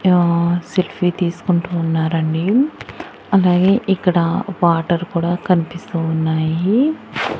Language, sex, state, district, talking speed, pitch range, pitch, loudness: Telugu, female, Andhra Pradesh, Annamaya, 80 wpm, 170-185 Hz, 175 Hz, -17 LUFS